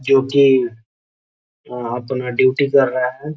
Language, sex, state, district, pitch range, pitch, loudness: Hindi, male, Bihar, Gopalganj, 125-135 Hz, 130 Hz, -17 LUFS